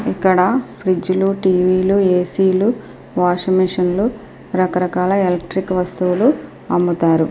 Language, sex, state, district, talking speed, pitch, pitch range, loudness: Telugu, female, Andhra Pradesh, Srikakulam, 105 wpm, 185 Hz, 180-195 Hz, -17 LUFS